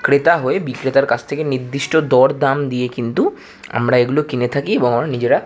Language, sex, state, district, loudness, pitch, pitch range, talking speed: Bengali, male, West Bengal, Kolkata, -17 LUFS, 135 Hz, 125-140 Hz, 175 wpm